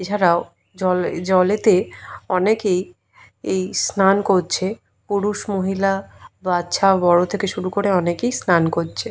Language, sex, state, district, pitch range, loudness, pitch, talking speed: Bengali, female, West Bengal, Purulia, 180-200 Hz, -19 LUFS, 190 Hz, 105 wpm